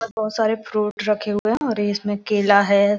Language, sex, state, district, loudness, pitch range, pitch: Hindi, female, Bihar, Araria, -20 LUFS, 205-220 Hz, 210 Hz